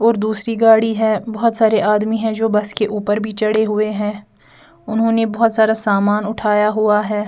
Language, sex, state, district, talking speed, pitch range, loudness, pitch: Hindi, female, Bihar, Patna, 190 wpm, 210-225 Hz, -16 LUFS, 215 Hz